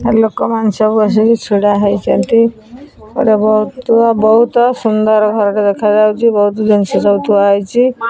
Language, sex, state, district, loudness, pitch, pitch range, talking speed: Odia, female, Odisha, Khordha, -11 LUFS, 215 Hz, 210-230 Hz, 120 wpm